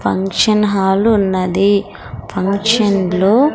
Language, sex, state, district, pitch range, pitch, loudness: Telugu, female, Andhra Pradesh, Sri Satya Sai, 190-215 Hz, 200 Hz, -14 LUFS